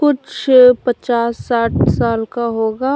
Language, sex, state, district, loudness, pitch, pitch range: Hindi, female, Jharkhand, Deoghar, -15 LUFS, 240 Hz, 230-255 Hz